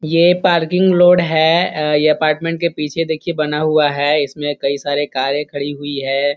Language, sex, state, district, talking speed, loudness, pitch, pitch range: Hindi, male, Bihar, Jahanabad, 180 wpm, -16 LUFS, 150 Hz, 145-165 Hz